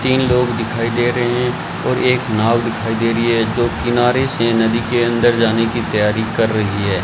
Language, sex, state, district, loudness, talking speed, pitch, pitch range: Hindi, male, Rajasthan, Bikaner, -16 LUFS, 215 wpm, 115 Hz, 115-120 Hz